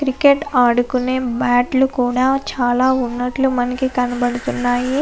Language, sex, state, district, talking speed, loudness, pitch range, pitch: Telugu, female, Andhra Pradesh, Anantapur, 95 wpm, -17 LUFS, 245-265 Hz, 250 Hz